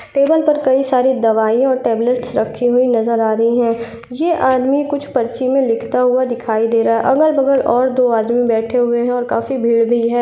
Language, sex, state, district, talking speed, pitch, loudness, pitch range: Hindi, female, Uttar Pradesh, Gorakhpur, 215 wpm, 245 Hz, -15 LUFS, 230-260 Hz